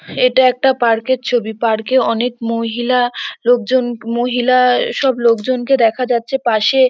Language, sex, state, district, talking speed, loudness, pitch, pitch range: Bengali, female, West Bengal, North 24 Parganas, 140 wpm, -15 LUFS, 245 Hz, 230-255 Hz